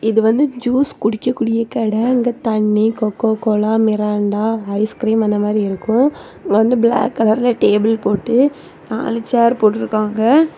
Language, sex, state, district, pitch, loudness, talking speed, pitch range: Tamil, female, Tamil Nadu, Kanyakumari, 225 Hz, -16 LUFS, 130 wpm, 215-240 Hz